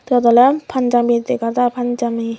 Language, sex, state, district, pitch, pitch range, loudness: Chakma, female, Tripura, Dhalai, 245 Hz, 235-250 Hz, -16 LUFS